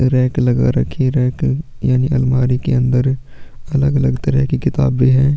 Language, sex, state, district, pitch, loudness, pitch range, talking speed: Hindi, male, Chhattisgarh, Sukma, 130 Hz, -16 LUFS, 125-135 Hz, 165 wpm